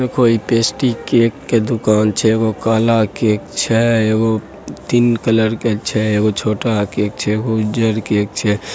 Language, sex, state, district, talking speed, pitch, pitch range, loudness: Angika, male, Bihar, Begusarai, 160 wpm, 110 Hz, 105-115 Hz, -16 LUFS